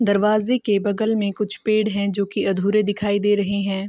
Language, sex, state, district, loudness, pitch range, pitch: Hindi, female, Bihar, Gopalganj, -20 LUFS, 200-210 Hz, 205 Hz